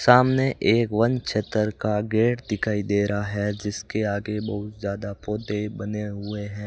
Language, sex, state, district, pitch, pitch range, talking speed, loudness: Hindi, male, Rajasthan, Bikaner, 105 Hz, 105-110 Hz, 160 wpm, -25 LUFS